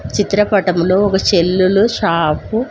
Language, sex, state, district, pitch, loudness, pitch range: Telugu, female, Andhra Pradesh, Sri Satya Sai, 195 Hz, -14 LUFS, 180-205 Hz